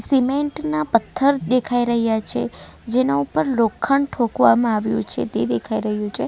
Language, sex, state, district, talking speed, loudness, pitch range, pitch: Gujarati, female, Gujarat, Valsad, 155 wpm, -20 LUFS, 215-265 Hz, 235 Hz